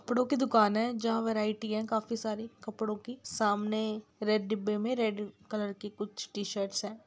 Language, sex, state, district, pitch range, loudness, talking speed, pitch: Hindi, male, Bihar, Sitamarhi, 210-225 Hz, -32 LUFS, 180 wpm, 215 Hz